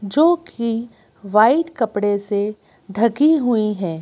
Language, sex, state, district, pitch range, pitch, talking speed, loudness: Hindi, female, Madhya Pradesh, Bhopal, 205-250 Hz, 220 Hz, 120 wpm, -18 LUFS